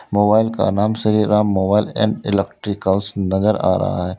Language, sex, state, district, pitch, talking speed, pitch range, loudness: Hindi, male, Uttar Pradesh, Lalitpur, 100 Hz, 170 wpm, 95-105 Hz, -18 LUFS